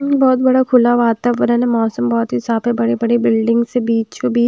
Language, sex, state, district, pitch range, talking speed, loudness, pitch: Hindi, female, Bihar, Katihar, 230-245 Hz, 200 wpm, -15 LUFS, 235 Hz